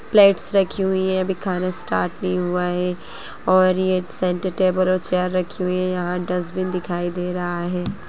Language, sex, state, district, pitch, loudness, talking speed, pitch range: Hindi, female, Chhattisgarh, Bastar, 185 Hz, -21 LUFS, 185 wpm, 180-185 Hz